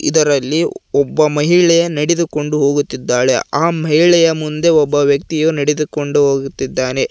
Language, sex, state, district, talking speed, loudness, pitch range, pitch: Kannada, male, Karnataka, Koppal, 100 wpm, -14 LUFS, 140-160 Hz, 150 Hz